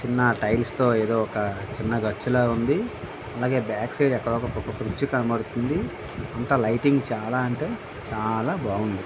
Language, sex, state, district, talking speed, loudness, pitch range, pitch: Telugu, male, Andhra Pradesh, Visakhapatnam, 145 wpm, -25 LUFS, 110-125 Hz, 115 Hz